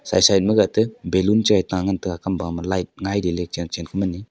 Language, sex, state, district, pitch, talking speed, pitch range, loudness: Wancho, male, Arunachal Pradesh, Longding, 95 Hz, 225 wpm, 90-100 Hz, -21 LUFS